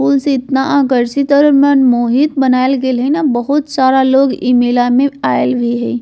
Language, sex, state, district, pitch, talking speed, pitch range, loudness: Bajjika, female, Bihar, Vaishali, 265 Hz, 190 wpm, 250-280 Hz, -12 LUFS